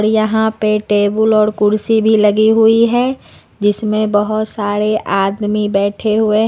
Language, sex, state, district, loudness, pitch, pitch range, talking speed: Hindi, female, Uttar Pradesh, Lucknow, -14 LUFS, 215 Hz, 210-220 Hz, 150 wpm